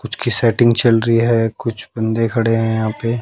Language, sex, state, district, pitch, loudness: Hindi, male, Haryana, Jhajjar, 115 Hz, -16 LUFS